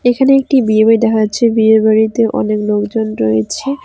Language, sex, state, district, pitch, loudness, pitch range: Bengali, female, West Bengal, Cooch Behar, 220 Hz, -12 LUFS, 215-245 Hz